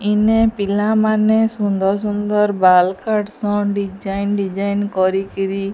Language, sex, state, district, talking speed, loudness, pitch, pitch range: Odia, female, Odisha, Sambalpur, 105 wpm, -17 LUFS, 205 Hz, 195-210 Hz